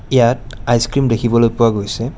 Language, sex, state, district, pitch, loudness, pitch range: Assamese, male, Assam, Kamrup Metropolitan, 120 Hz, -15 LUFS, 115-120 Hz